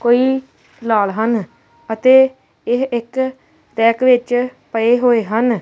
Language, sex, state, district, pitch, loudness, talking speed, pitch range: Punjabi, female, Punjab, Kapurthala, 240 Hz, -16 LUFS, 115 wpm, 225-255 Hz